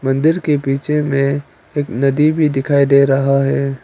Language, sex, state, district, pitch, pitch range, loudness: Hindi, female, Arunachal Pradesh, Papum Pare, 140 Hz, 135-150 Hz, -15 LUFS